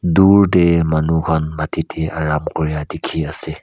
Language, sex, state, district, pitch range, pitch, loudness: Nagamese, male, Nagaland, Kohima, 75-80 Hz, 80 Hz, -17 LUFS